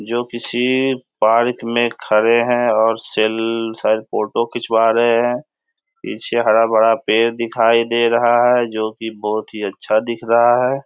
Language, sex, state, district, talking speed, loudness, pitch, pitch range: Hindi, male, Bihar, Samastipur, 160 wpm, -17 LUFS, 115 Hz, 110-120 Hz